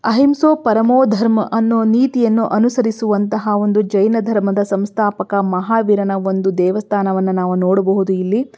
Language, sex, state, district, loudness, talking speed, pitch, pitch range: Kannada, female, Karnataka, Belgaum, -15 LUFS, 105 wpm, 210 Hz, 195-225 Hz